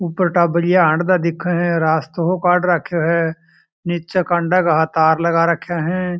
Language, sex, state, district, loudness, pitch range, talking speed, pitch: Marwari, male, Rajasthan, Churu, -17 LUFS, 165-180 Hz, 175 wpm, 170 Hz